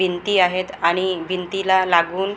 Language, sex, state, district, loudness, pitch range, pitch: Marathi, female, Maharashtra, Gondia, -19 LUFS, 180-190 Hz, 185 Hz